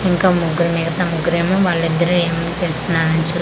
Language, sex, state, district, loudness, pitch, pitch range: Telugu, female, Andhra Pradesh, Manyam, -17 LUFS, 170 Hz, 165-175 Hz